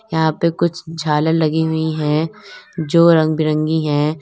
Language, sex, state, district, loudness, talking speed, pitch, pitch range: Hindi, female, Uttar Pradesh, Lalitpur, -17 LUFS, 155 wpm, 160 Hz, 155-165 Hz